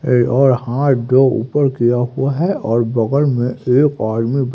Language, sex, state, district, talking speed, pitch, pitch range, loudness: Hindi, male, Haryana, Rohtak, 170 wpm, 125 Hz, 120-140 Hz, -15 LUFS